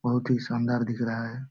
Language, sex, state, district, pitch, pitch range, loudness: Hindi, male, Jharkhand, Jamtara, 120 Hz, 120-125 Hz, -28 LUFS